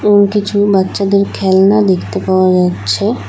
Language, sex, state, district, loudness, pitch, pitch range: Bengali, female, West Bengal, Alipurduar, -12 LUFS, 195 Hz, 185-205 Hz